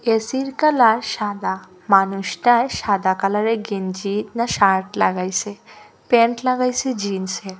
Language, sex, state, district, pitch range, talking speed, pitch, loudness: Bengali, female, Assam, Hailakandi, 195-235 Hz, 105 wpm, 210 Hz, -19 LUFS